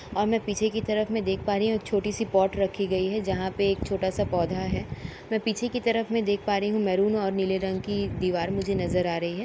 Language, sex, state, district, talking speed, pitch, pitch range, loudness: Hindi, female, Uttar Pradesh, Budaun, 265 wpm, 200 Hz, 190-215 Hz, -27 LUFS